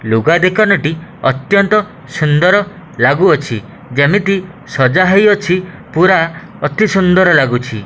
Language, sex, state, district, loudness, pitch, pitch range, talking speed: Odia, male, Odisha, Khordha, -12 LUFS, 175 Hz, 145-195 Hz, 90 wpm